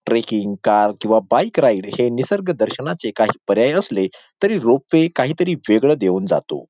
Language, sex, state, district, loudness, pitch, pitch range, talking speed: Marathi, male, Maharashtra, Dhule, -18 LUFS, 120 Hz, 105-165 Hz, 150 wpm